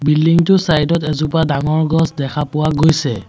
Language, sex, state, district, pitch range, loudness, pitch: Assamese, male, Assam, Sonitpur, 150-160 Hz, -15 LUFS, 155 Hz